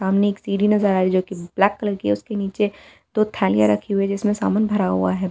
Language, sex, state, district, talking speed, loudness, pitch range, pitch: Hindi, female, Delhi, New Delhi, 270 wpm, -20 LUFS, 185-210 Hz, 200 Hz